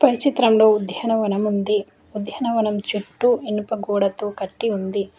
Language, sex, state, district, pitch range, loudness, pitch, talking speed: Telugu, female, Telangana, Adilabad, 200-225 Hz, -21 LUFS, 210 Hz, 115 wpm